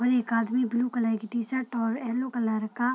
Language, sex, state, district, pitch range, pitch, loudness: Hindi, female, Bihar, Purnia, 230-250 Hz, 240 Hz, -28 LUFS